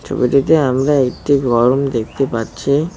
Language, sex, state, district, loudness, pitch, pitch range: Bengali, male, West Bengal, Cooch Behar, -15 LUFS, 135 Hz, 125-140 Hz